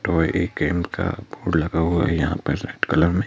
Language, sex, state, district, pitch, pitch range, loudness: Hindi, male, Madhya Pradesh, Bhopal, 85 Hz, 80-90 Hz, -22 LUFS